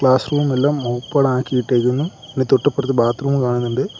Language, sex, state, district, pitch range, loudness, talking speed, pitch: Malayalam, male, Kerala, Kollam, 125-140 Hz, -18 LUFS, 120 wpm, 130 Hz